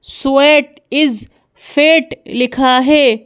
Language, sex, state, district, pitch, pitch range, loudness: Hindi, female, Madhya Pradesh, Bhopal, 285 Hz, 255-295 Hz, -12 LUFS